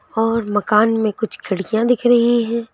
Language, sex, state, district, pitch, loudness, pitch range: Hindi, female, Madhya Pradesh, Bhopal, 225 Hz, -17 LUFS, 210-235 Hz